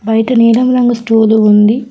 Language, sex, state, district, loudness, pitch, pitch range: Telugu, female, Telangana, Hyderabad, -9 LUFS, 225 Hz, 220-240 Hz